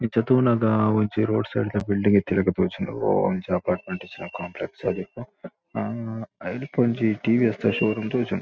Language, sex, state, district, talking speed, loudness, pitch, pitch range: Tulu, male, Karnataka, Dakshina Kannada, 170 wpm, -24 LUFS, 110 Hz, 105-115 Hz